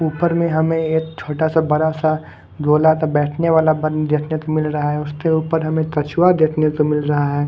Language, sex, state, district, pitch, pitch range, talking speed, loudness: Hindi, male, Odisha, Khordha, 155 Hz, 150-160 Hz, 215 wpm, -18 LUFS